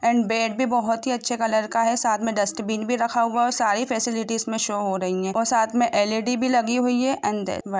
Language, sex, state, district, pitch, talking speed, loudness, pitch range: Hindi, female, Jharkhand, Jamtara, 230 Hz, 245 wpm, -23 LUFS, 220-240 Hz